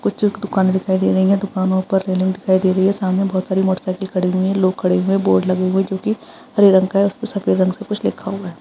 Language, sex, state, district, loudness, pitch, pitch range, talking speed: Hindi, female, Uttar Pradesh, Budaun, -17 LUFS, 190 Hz, 185-195 Hz, 300 wpm